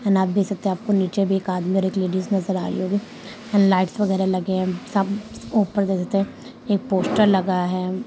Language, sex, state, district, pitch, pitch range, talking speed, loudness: Hindi, female, Bihar, Gaya, 195 Hz, 185-205 Hz, 225 wpm, -22 LUFS